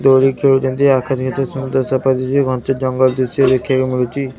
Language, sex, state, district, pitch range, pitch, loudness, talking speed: Odia, male, Odisha, Khordha, 130-135 Hz, 130 Hz, -15 LUFS, 165 wpm